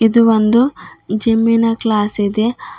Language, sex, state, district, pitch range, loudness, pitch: Kannada, female, Karnataka, Bidar, 215-230 Hz, -14 LUFS, 225 Hz